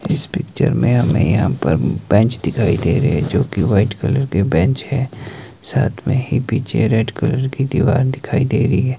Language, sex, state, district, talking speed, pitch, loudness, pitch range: Hindi, male, Himachal Pradesh, Shimla, 195 wpm, 130 Hz, -17 LUFS, 115-135 Hz